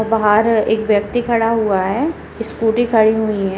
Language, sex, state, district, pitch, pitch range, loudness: Hindi, female, Uttarakhand, Uttarkashi, 220 Hz, 210-230 Hz, -16 LUFS